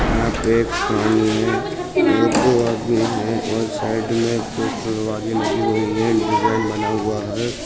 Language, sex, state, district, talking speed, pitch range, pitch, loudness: Hindi, male, Uttar Pradesh, Etah, 135 wpm, 110-115 Hz, 110 Hz, -19 LUFS